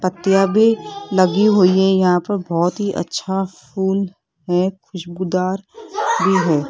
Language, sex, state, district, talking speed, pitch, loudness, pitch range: Hindi, female, Rajasthan, Jaipur, 135 wpm, 190 Hz, -18 LUFS, 180-200 Hz